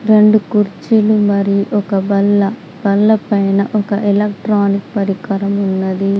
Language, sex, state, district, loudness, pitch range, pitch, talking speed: Telugu, female, Telangana, Adilabad, -14 LUFS, 200-210 Hz, 200 Hz, 105 wpm